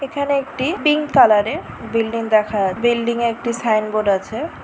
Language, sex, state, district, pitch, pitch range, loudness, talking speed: Bengali, female, West Bengal, Purulia, 235 Hz, 215-275 Hz, -18 LUFS, 140 wpm